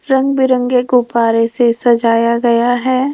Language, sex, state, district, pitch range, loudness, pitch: Hindi, female, Rajasthan, Jaipur, 235-255 Hz, -13 LUFS, 245 Hz